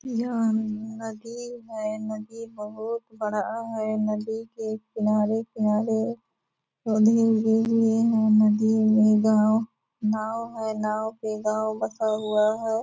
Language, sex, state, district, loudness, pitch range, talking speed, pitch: Hindi, female, Bihar, Purnia, -24 LUFS, 215-225 Hz, 115 wpm, 220 Hz